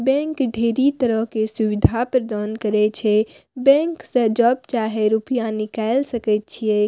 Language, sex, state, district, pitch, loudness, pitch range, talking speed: Maithili, female, Bihar, Madhepura, 230 Hz, -20 LUFS, 215-255 Hz, 140 wpm